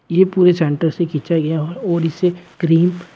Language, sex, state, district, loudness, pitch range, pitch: Hindi, male, Uttar Pradesh, Shamli, -17 LUFS, 160-180 Hz, 170 Hz